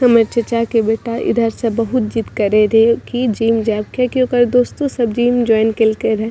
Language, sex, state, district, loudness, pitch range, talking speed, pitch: Maithili, female, Bihar, Madhepura, -15 LUFS, 225-245 Hz, 210 wpm, 230 Hz